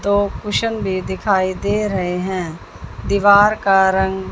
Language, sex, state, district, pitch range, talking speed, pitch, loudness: Hindi, female, Haryana, Jhajjar, 185-205 Hz, 140 wpm, 190 Hz, -17 LUFS